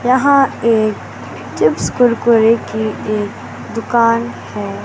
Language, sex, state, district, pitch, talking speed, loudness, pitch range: Hindi, male, Madhya Pradesh, Katni, 230 Hz, 100 wpm, -15 LUFS, 215-235 Hz